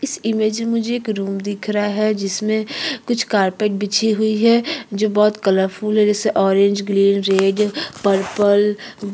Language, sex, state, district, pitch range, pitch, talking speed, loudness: Hindi, female, Chhattisgarh, Sukma, 200-220 Hz, 210 Hz, 170 wpm, -18 LUFS